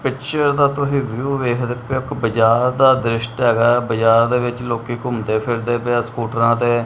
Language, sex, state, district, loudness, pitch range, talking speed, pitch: Punjabi, male, Punjab, Kapurthala, -18 LUFS, 115-130 Hz, 200 wpm, 120 Hz